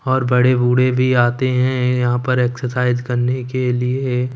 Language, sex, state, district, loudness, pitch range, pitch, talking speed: Hindi, male, Punjab, Kapurthala, -17 LUFS, 125-130 Hz, 125 Hz, 165 wpm